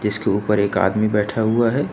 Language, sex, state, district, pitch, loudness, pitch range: Hindi, male, Uttar Pradesh, Lucknow, 105 Hz, -19 LUFS, 105-110 Hz